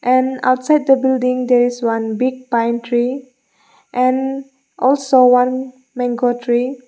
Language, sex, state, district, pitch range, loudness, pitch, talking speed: English, female, Mizoram, Aizawl, 245-265 Hz, -16 LUFS, 255 Hz, 130 wpm